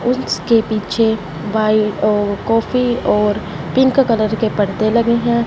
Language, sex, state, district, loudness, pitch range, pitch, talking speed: Hindi, female, Punjab, Fazilka, -16 LUFS, 210-235 Hz, 220 Hz, 130 wpm